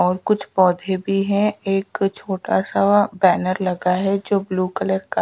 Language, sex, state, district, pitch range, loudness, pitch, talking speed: Hindi, female, Chhattisgarh, Raipur, 185-200 Hz, -20 LUFS, 195 Hz, 170 wpm